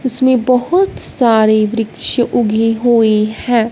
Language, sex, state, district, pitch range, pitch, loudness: Hindi, female, Punjab, Fazilka, 220-250 Hz, 235 Hz, -13 LUFS